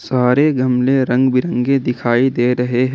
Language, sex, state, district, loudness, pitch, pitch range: Hindi, male, Jharkhand, Ranchi, -15 LUFS, 125 Hz, 125-130 Hz